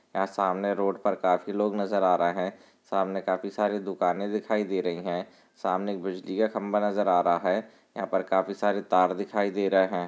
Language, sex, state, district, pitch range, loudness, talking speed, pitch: Hindi, male, Chhattisgarh, Raigarh, 95-100 Hz, -27 LUFS, 210 wpm, 100 Hz